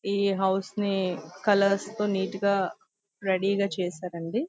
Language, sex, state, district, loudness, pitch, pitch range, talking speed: Telugu, female, Andhra Pradesh, Visakhapatnam, -27 LUFS, 195 Hz, 190-200 Hz, 145 wpm